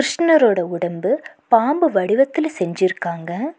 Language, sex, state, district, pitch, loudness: Tamil, female, Tamil Nadu, Nilgiris, 230 Hz, -18 LUFS